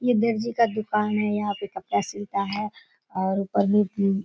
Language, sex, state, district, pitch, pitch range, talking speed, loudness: Hindi, female, Bihar, Kishanganj, 210 Hz, 200-215 Hz, 210 wpm, -25 LUFS